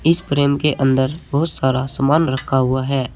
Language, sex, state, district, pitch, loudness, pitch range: Hindi, male, Uttar Pradesh, Saharanpur, 140 Hz, -18 LUFS, 130-150 Hz